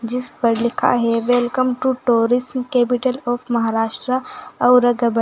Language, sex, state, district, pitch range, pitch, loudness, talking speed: Hindi, female, Uttar Pradesh, Saharanpur, 235-250 Hz, 245 Hz, -18 LUFS, 140 wpm